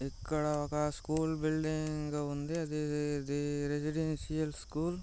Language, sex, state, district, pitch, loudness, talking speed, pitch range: Telugu, male, Andhra Pradesh, Visakhapatnam, 150 Hz, -35 LUFS, 120 wpm, 145-155 Hz